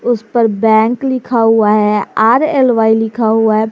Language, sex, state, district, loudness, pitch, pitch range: Hindi, female, Jharkhand, Garhwa, -12 LUFS, 225 Hz, 220-240 Hz